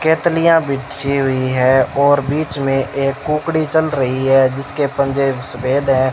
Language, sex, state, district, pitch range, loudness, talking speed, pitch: Hindi, male, Rajasthan, Bikaner, 135-150 Hz, -16 LUFS, 155 wpm, 140 Hz